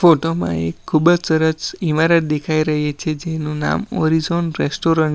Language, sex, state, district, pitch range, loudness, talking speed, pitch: Gujarati, male, Gujarat, Valsad, 155-165 Hz, -18 LUFS, 175 wpm, 160 Hz